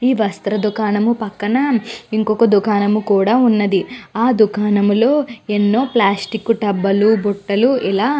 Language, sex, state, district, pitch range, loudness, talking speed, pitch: Telugu, female, Andhra Pradesh, Guntur, 205-235 Hz, -16 LUFS, 125 wpm, 215 Hz